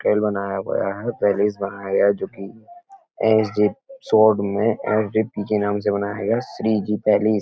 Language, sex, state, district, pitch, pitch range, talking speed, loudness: Hindi, male, Uttar Pradesh, Etah, 105 Hz, 100-110 Hz, 210 wpm, -21 LUFS